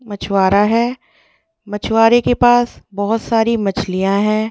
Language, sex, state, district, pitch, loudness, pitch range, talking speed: Hindi, female, Delhi, New Delhi, 220 Hz, -15 LUFS, 205-235 Hz, 135 wpm